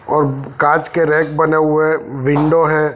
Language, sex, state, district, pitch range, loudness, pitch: Hindi, male, Punjab, Fazilka, 145-155 Hz, -15 LUFS, 155 Hz